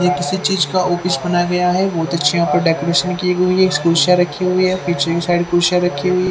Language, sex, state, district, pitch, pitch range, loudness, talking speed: Hindi, female, Haryana, Charkhi Dadri, 180 Hz, 175-185 Hz, -16 LUFS, 230 wpm